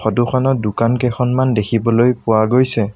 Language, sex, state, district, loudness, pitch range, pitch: Assamese, male, Assam, Sonitpur, -15 LUFS, 110-125 Hz, 120 Hz